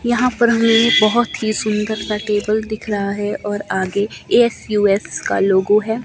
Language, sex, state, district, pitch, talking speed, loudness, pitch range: Hindi, female, Himachal Pradesh, Shimla, 215 Hz, 190 wpm, -17 LUFS, 205-230 Hz